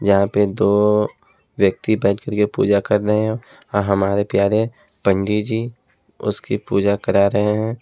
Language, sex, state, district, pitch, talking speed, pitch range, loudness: Hindi, male, Haryana, Jhajjar, 105 Hz, 155 wpm, 100-110 Hz, -19 LUFS